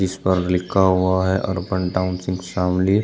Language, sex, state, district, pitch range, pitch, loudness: Hindi, male, Uttar Pradesh, Shamli, 90-95 Hz, 95 Hz, -20 LUFS